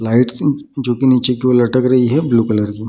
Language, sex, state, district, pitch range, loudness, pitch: Hindi, male, Bihar, Samastipur, 115-130 Hz, -15 LUFS, 125 Hz